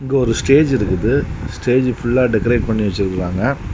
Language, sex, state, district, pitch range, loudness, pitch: Tamil, male, Tamil Nadu, Kanyakumari, 105-130 Hz, -17 LUFS, 120 Hz